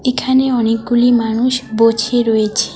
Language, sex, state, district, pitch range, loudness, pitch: Bengali, female, West Bengal, Alipurduar, 225-250 Hz, -14 LUFS, 235 Hz